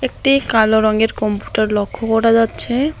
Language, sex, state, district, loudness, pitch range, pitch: Bengali, female, West Bengal, Alipurduar, -16 LUFS, 215-250 Hz, 225 Hz